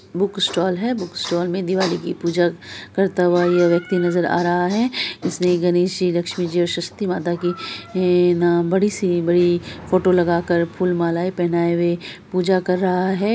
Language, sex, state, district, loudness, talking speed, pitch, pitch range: Hindi, female, Bihar, Araria, -19 LUFS, 165 wpm, 180 Hz, 175-185 Hz